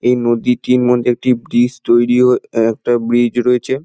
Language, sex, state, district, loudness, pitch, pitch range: Bengali, male, West Bengal, Dakshin Dinajpur, -14 LUFS, 120 Hz, 120-125 Hz